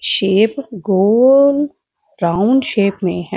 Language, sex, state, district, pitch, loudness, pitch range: Hindi, female, Uttar Pradesh, Muzaffarnagar, 215 Hz, -14 LUFS, 195-270 Hz